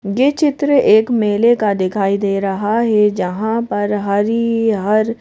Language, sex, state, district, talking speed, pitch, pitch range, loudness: Hindi, female, Madhya Pradesh, Bhopal, 160 wpm, 215 Hz, 200-230 Hz, -15 LUFS